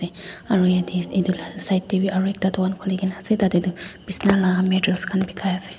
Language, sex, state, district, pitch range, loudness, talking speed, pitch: Nagamese, female, Nagaland, Dimapur, 185-195 Hz, -22 LUFS, 220 wpm, 190 Hz